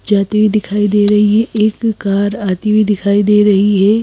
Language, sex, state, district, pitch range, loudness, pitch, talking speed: Hindi, female, Madhya Pradesh, Bhopal, 205-215 Hz, -12 LUFS, 210 Hz, 210 wpm